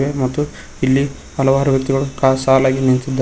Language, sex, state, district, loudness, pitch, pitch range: Kannada, male, Karnataka, Koppal, -16 LUFS, 135 Hz, 130-140 Hz